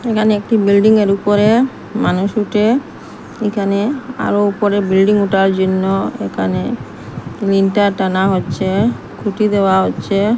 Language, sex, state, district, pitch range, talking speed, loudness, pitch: Bengali, female, Assam, Hailakandi, 190-210 Hz, 115 wpm, -15 LUFS, 200 Hz